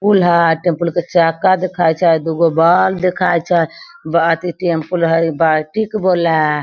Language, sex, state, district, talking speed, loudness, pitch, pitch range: Hindi, female, Bihar, Sitamarhi, 155 wpm, -14 LUFS, 170 Hz, 165-180 Hz